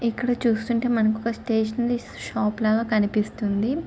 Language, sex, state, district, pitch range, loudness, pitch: Telugu, female, Andhra Pradesh, Chittoor, 215-240 Hz, -24 LUFS, 230 Hz